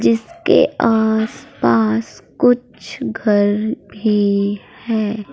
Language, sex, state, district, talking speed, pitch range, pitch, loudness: Hindi, female, Uttar Pradesh, Saharanpur, 80 wpm, 200-230 Hz, 215 Hz, -17 LUFS